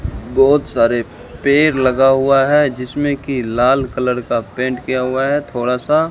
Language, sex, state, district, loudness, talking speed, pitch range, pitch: Hindi, male, Rajasthan, Bikaner, -16 LUFS, 165 wpm, 125-140 Hz, 130 Hz